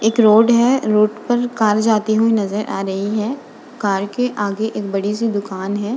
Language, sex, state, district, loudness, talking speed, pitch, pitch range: Hindi, female, Uttar Pradesh, Budaun, -17 LUFS, 200 wpm, 215 Hz, 205-230 Hz